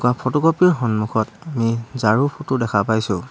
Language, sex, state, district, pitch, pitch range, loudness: Assamese, male, Assam, Hailakandi, 120 Hz, 110-140 Hz, -19 LUFS